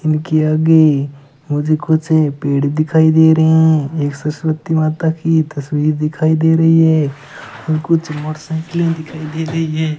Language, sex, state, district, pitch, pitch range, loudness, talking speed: Hindi, male, Rajasthan, Bikaner, 155 Hz, 150-160 Hz, -15 LUFS, 145 wpm